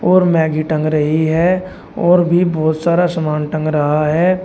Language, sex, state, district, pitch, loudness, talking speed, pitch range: Hindi, male, Uttar Pradesh, Shamli, 160 Hz, -15 LUFS, 175 wpm, 155-180 Hz